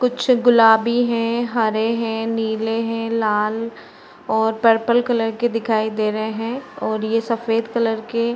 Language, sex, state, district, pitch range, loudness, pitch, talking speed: Hindi, female, Uttar Pradesh, Varanasi, 220-235 Hz, -19 LUFS, 225 Hz, 160 wpm